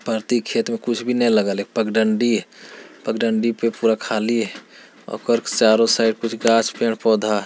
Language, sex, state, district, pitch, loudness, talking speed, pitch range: Hindi, male, Bihar, Jamui, 115 Hz, -19 LUFS, 175 wpm, 110-115 Hz